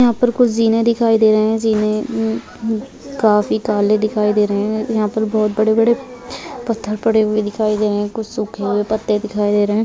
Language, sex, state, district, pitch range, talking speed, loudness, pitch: Hindi, female, Chhattisgarh, Rajnandgaon, 210-225 Hz, 220 wpm, -17 LUFS, 220 Hz